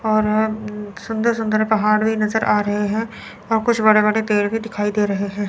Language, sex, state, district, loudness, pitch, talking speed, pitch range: Hindi, female, Chandigarh, Chandigarh, -19 LUFS, 215 Hz, 210 wpm, 210-220 Hz